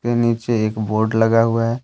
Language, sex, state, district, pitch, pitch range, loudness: Hindi, male, Jharkhand, Deoghar, 115 Hz, 110-115 Hz, -18 LUFS